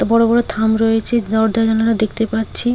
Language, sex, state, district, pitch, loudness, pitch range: Bengali, female, West Bengal, Paschim Medinipur, 225 Hz, -16 LUFS, 220-230 Hz